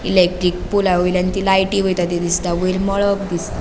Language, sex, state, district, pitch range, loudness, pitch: Konkani, female, Goa, North and South Goa, 180-195 Hz, -17 LUFS, 185 Hz